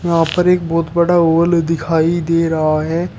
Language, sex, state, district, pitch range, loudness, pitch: Hindi, male, Uttar Pradesh, Shamli, 165-170 Hz, -15 LUFS, 165 Hz